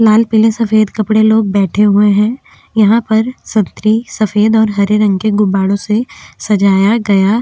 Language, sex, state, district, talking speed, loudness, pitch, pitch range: Hindi, female, Chhattisgarh, Korba, 180 wpm, -12 LUFS, 215 Hz, 205-220 Hz